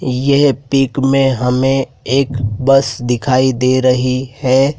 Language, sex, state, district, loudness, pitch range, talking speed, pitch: Hindi, male, Madhya Pradesh, Dhar, -14 LUFS, 125-135 Hz, 125 wpm, 130 Hz